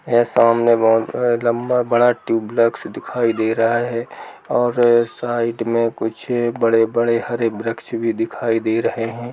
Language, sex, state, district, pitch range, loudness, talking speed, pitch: Hindi, male, Bihar, Gaya, 115-120 Hz, -18 LUFS, 155 wpm, 115 Hz